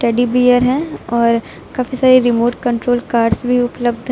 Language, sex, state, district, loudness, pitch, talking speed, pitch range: Hindi, female, Uttar Pradesh, Lucknow, -15 LUFS, 245 Hz, 175 wpm, 235-250 Hz